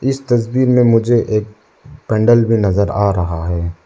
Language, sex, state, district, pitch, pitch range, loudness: Hindi, male, Arunachal Pradesh, Lower Dibang Valley, 110 Hz, 100-120 Hz, -15 LUFS